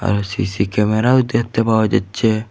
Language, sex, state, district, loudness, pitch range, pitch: Bengali, male, Assam, Hailakandi, -17 LUFS, 100-115 Hz, 110 Hz